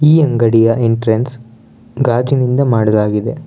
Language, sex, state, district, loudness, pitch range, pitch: Kannada, male, Karnataka, Bangalore, -13 LUFS, 115-125 Hz, 115 Hz